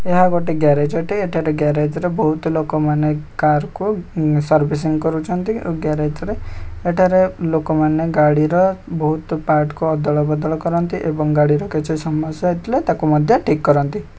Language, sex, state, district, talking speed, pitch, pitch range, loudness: Odia, male, Odisha, Khordha, 145 wpm, 155 Hz, 150-175 Hz, -18 LUFS